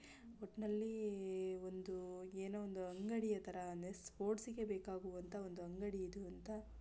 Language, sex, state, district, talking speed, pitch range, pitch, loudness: Kannada, female, Karnataka, Gulbarga, 130 wpm, 185-210 Hz, 195 Hz, -46 LUFS